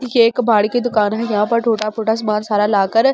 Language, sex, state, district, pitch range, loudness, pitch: Hindi, female, Delhi, New Delhi, 210-230 Hz, -16 LUFS, 220 Hz